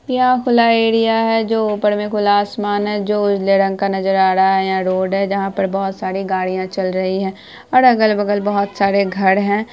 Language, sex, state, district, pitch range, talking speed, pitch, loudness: Hindi, female, Bihar, Araria, 195-210 Hz, 215 wpm, 200 Hz, -16 LUFS